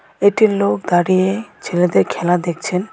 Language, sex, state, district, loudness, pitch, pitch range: Bengali, female, West Bengal, Alipurduar, -16 LUFS, 185 Hz, 175-205 Hz